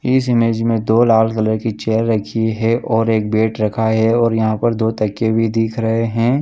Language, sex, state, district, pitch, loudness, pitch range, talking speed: Hindi, male, Chhattisgarh, Bilaspur, 115 Hz, -16 LUFS, 110-115 Hz, 225 wpm